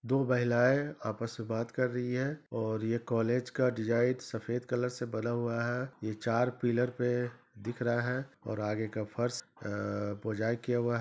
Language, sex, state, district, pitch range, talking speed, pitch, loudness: Hindi, male, Bihar, East Champaran, 115-125 Hz, 185 wpm, 120 Hz, -33 LUFS